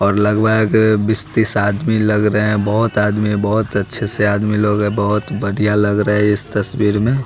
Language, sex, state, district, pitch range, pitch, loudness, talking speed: Hindi, male, Bihar, West Champaran, 105-110 Hz, 105 Hz, -15 LUFS, 200 wpm